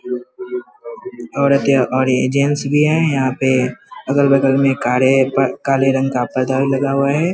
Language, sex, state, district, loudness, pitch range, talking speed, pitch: Hindi, male, Bihar, Vaishali, -16 LUFS, 130-140 Hz, 165 wpm, 135 Hz